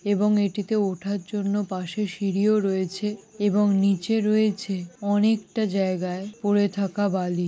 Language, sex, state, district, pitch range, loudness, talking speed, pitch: Bengali, male, West Bengal, Jalpaiguri, 195-210 Hz, -24 LUFS, 130 wpm, 205 Hz